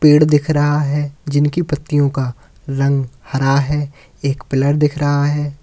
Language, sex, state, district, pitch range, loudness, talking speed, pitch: Hindi, male, Uttar Pradesh, Lalitpur, 140-150 Hz, -17 LUFS, 160 wpm, 145 Hz